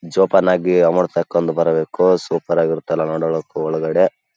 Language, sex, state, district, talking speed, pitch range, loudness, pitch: Kannada, male, Karnataka, Raichur, 95 wpm, 80-90 Hz, -17 LUFS, 85 Hz